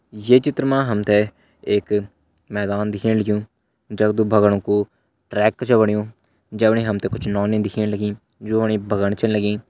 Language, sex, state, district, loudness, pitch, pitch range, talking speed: Hindi, male, Uttarakhand, Uttarkashi, -20 LUFS, 105 Hz, 105-110 Hz, 150 wpm